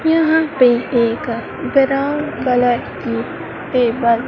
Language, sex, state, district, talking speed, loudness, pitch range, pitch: Hindi, female, Madhya Pradesh, Dhar, 110 wpm, -17 LUFS, 240-295 Hz, 250 Hz